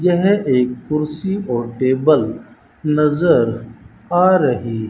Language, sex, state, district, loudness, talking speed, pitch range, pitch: Hindi, male, Rajasthan, Bikaner, -17 LUFS, 100 wpm, 120-175 Hz, 150 Hz